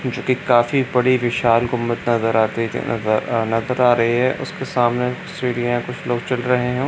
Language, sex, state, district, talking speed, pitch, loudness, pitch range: Hindi, male, Bihar, Jamui, 190 wpm, 125 Hz, -19 LUFS, 120-125 Hz